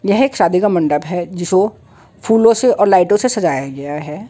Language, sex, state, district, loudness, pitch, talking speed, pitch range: Hindi, female, Uttar Pradesh, Jalaun, -15 LUFS, 185 Hz, 210 wpm, 170-215 Hz